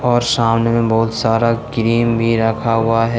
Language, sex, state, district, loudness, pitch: Hindi, male, Jharkhand, Deoghar, -16 LUFS, 115 Hz